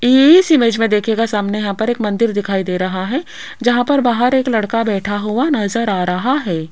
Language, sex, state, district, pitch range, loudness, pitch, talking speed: Hindi, female, Rajasthan, Jaipur, 205-245 Hz, -15 LUFS, 225 Hz, 215 wpm